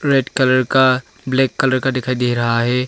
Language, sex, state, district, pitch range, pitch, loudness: Hindi, male, Arunachal Pradesh, Longding, 125-135 Hz, 130 Hz, -16 LUFS